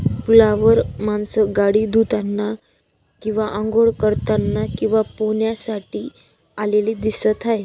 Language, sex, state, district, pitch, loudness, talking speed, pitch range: Marathi, female, Maharashtra, Dhule, 215 Hz, -18 LUFS, 100 wpm, 210-220 Hz